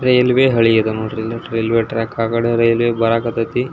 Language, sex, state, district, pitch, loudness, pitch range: Kannada, male, Karnataka, Belgaum, 115 Hz, -16 LUFS, 115-120 Hz